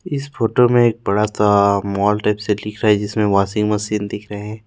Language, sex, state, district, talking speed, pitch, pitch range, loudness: Hindi, male, Chhattisgarh, Rajnandgaon, 230 wpm, 105 Hz, 105-110 Hz, -17 LUFS